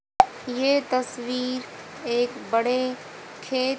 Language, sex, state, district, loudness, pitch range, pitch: Hindi, female, Haryana, Jhajjar, -25 LUFS, 245-260 Hz, 255 Hz